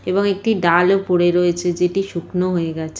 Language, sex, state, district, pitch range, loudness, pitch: Bengali, female, West Bengal, Jalpaiguri, 175-190 Hz, -18 LUFS, 180 Hz